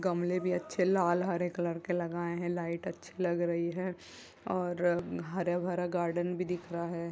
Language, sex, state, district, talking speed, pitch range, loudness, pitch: Hindi, female, Uttar Pradesh, Jyotiba Phule Nagar, 175 wpm, 170-180 Hz, -33 LUFS, 175 Hz